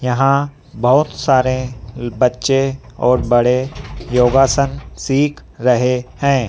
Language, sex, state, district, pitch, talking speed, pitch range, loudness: Hindi, female, Madhya Pradesh, Dhar, 130 Hz, 90 wpm, 125-135 Hz, -16 LUFS